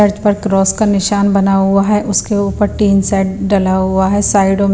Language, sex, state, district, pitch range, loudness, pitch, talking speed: Hindi, female, Bihar, Patna, 195-205 Hz, -13 LUFS, 200 Hz, 200 wpm